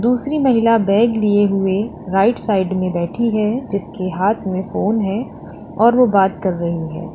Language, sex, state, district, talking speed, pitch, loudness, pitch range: Hindi, female, Uttar Pradesh, Lalitpur, 175 wpm, 205 Hz, -17 LUFS, 190-230 Hz